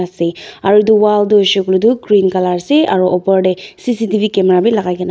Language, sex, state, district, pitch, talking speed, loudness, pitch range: Nagamese, female, Nagaland, Dimapur, 195 Hz, 225 wpm, -13 LUFS, 185-210 Hz